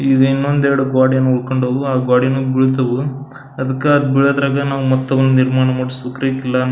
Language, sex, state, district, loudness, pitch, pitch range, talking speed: Kannada, male, Karnataka, Belgaum, -15 LUFS, 130 Hz, 130-135 Hz, 150 wpm